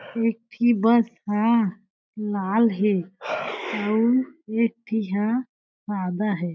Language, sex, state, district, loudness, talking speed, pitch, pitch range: Chhattisgarhi, female, Chhattisgarh, Jashpur, -24 LUFS, 110 wpm, 220 Hz, 205-230 Hz